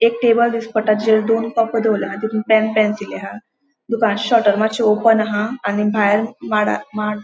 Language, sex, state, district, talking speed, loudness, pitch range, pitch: Konkani, female, Goa, North and South Goa, 175 wpm, -17 LUFS, 210-230 Hz, 220 Hz